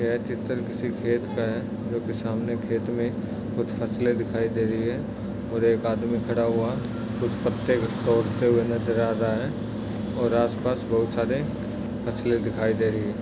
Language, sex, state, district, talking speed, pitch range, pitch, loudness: Hindi, male, Maharashtra, Aurangabad, 175 wpm, 115-120 Hz, 115 Hz, -26 LUFS